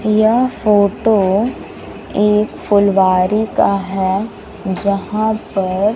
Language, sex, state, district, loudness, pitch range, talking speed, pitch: Hindi, female, Bihar, West Champaran, -15 LUFS, 195-215 Hz, 80 wpm, 205 Hz